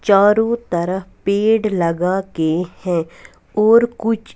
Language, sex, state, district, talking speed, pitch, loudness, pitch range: Hindi, female, Punjab, Fazilka, 125 wpm, 195 Hz, -17 LUFS, 175-225 Hz